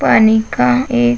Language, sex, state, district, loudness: Hindi, female, Maharashtra, Nagpur, -13 LUFS